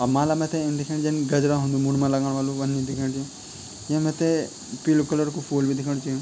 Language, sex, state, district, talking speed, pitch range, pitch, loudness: Garhwali, male, Uttarakhand, Tehri Garhwal, 230 wpm, 135-150 Hz, 145 Hz, -24 LUFS